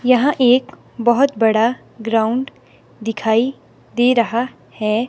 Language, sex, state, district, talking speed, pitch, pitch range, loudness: Hindi, female, Himachal Pradesh, Shimla, 105 wpm, 240 Hz, 225-255 Hz, -17 LUFS